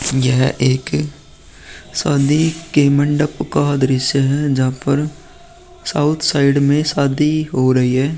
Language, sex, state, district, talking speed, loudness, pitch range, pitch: Hindi, male, Bihar, Vaishali, 125 wpm, -16 LUFS, 130-150 Hz, 140 Hz